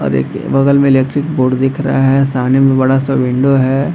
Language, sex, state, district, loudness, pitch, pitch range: Hindi, male, Bihar, Madhepura, -12 LUFS, 135 Hz, 130-135 Hz